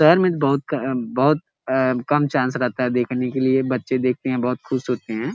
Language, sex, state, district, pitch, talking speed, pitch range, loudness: Hindi, male, Uttar Pradesh, Gorakhpur, 130 Hz, 200 wpm, 125-140 Hz, -21 LUFS